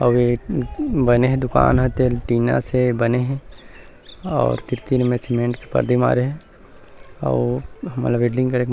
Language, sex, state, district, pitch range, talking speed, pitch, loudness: Chhattisgarhi, male, Chhattisgarh, Rajnandgaon, 120-130 Hz, 165 wpm, 125 Hz, -20 LUFS